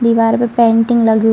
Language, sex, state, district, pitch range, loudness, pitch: Hindi, female, Bihar, Saran, 225-235 Hz, -12 LUFS, 230 Hz